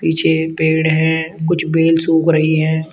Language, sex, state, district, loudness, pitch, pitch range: Hindi, male, Uttar Pradesh, Shamli, -15 LUFS, 160 Hz, 160-165 Hz